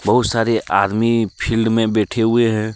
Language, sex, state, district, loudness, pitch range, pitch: Hindi, male, Jharkhand, Deoghar, -17 LUFS, 110-115 Hz, 115 Hz